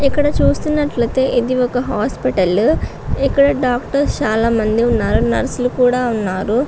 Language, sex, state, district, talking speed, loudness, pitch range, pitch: Telugu, female, Andhra Pradesh, Srikakulam, 115 wpm, -16 LUFS, 235-275 Hz, 250 Hz